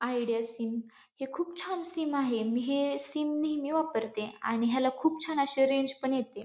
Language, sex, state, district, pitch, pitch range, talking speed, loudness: Marathi, female, Maharashtra, Pune, 270 Hz, 230-300 Hz, 185 wpm, -31 LUFS